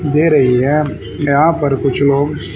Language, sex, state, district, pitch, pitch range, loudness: Hindi, male, Haryana, Rohtak, 145 Hz, 135-150 Hz, -14 LUFS